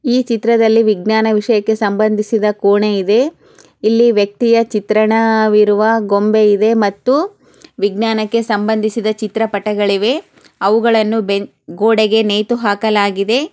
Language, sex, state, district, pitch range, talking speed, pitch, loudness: Kannada, female, Karnataka, Chamarajanagar, 210-225 Hz, 95 wpm, 215 Hz, -14 LUFS